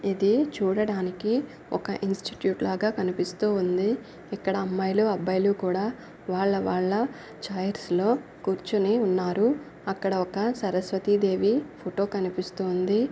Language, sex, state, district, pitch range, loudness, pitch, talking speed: Telugu, female, Andhra Pradesh, Anantapur, 185-215 Hz, -27 LUFS, 195 Hz, 100 wpm